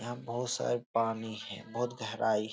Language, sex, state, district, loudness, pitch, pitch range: Hindi, male, Bihar, Jahanabad, -34 LUFS, 115 Hz, 110-120 Hz